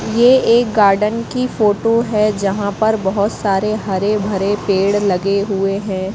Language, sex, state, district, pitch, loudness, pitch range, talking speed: Hindi, female, Madhya Pradesh, Katni, 205 Hz, -16 LUFS, 195-220 Hz, 155 wpm